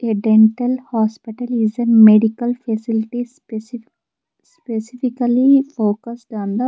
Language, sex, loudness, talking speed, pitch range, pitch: English, female, -16 LUFS, 115 wpm, 220-245 Hz, 235 Hz